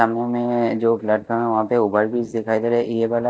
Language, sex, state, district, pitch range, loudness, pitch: Hindi, male, Maharashtra, Mumbai Suburban, 110-120 Hz, -20 LUFS, 115 Hz